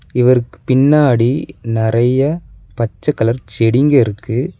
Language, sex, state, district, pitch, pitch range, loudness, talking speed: Tamil, male, Tamil Nadu, Nilgiris, 125 Hz, 115-140 Hz, -14 LUFS, 80 wpm